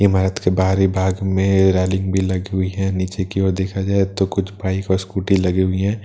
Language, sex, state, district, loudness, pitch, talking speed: Hindi, male, Bihar, Katihar, -19 LUFS, 95 Hz, 230 wpm